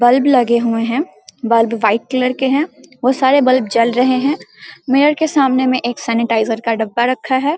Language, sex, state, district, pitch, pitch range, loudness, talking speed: Hindi, female, Bihar, Samastipur, 255 Hz, 230-270 Hz, -15 LUFS, 200 wpm